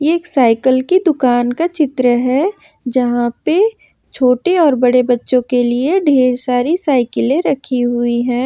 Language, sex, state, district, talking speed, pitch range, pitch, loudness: Hindi, female, Jharkhand, Ranchi, 150 wpm, 245-305 Hz, 255 Hz, -14 LUFS